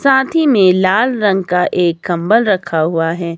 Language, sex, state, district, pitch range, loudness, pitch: Hindi, male, Himachal Pradesh, Shimla, 170-230 Hz, -13 LUFS, 185 Hz